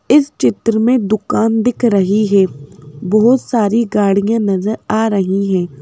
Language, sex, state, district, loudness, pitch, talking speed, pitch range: Hindi, female, Madhya Pradesh, Bhopal, -14 LUFS, 215 Hz, 145 wpm, 195-230 Hz